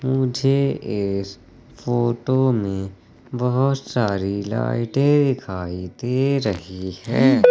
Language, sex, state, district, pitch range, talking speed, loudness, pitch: Hindi, male, Madhya Pradesh, Katni, 100-130 Hz, 90 wpm, -21 LUFS, 120 Hz